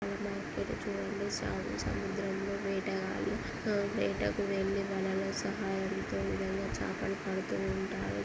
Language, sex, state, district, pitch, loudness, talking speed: Telugu, female, Andhra Pradesh, Guntur, 190 Hz, -35 LUFS, 110 wpm